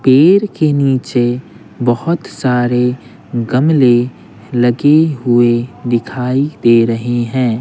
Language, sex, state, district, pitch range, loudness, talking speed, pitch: Hindi, male, Bihar, Patna, 120-135 Hz, -13 LUFS, 95 wpm, 125 Hz